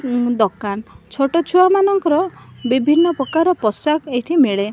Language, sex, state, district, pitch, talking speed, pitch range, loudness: Odia, female, Odisha, Malkangiri, 280 Hz, 115 wpm, 240-335 Hz, -17 LUFS